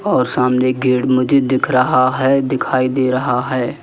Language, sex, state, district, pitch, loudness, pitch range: Hindi, male, Madhya Pradesh, Katni, 130 Hz, -15 LUFS, 125-130 Hz